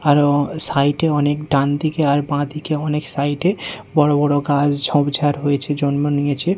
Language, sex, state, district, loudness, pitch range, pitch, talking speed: Bengali, male, Odisha, Nuapada, -18 LUFS, 145-150 Hz, 145 Hz, 155 wpm